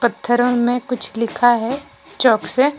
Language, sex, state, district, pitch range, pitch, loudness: Hindi, female, Jharkhand, Deoghar, 240-250 Hz, 245 Hz, -17 LUFS